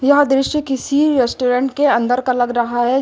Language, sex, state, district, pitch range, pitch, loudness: Hindi, female, Uttar Pradesh, Lucknow, 245-285 Hz, 260 Hz, -16 LUFS